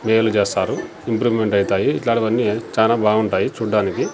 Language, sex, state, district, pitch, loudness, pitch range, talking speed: Telugu, male, Andhra Pradesh, Sri Satya Sai, 110 Hz, -19 LUFS, 105-115 Hz, 130 wpm